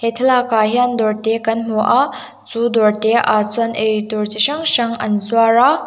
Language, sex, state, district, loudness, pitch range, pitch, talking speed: Mizo, female, Mizoram, Aizawl, -15 LUFS, 215-235 Hz, 225 Hz, 205 wpm